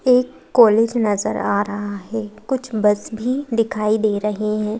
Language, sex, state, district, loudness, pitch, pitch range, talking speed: Hindi, female, Madhya Pradesh, Bhopal, -19 LUFS, 215 Hz, 210-230 Hz, 160 wpm